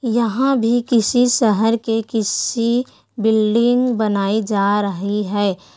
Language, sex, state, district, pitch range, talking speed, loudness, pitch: Hindi, female, Chhattisgarh, Korba, 205-240 Hz, 115 wpm, -17 LUFS, 225 Hz